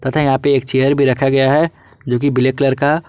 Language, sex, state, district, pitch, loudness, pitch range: Hindi, male, Jharkhand, Garhwa, 135 Hz, -15 LUFS, 130-145 Hz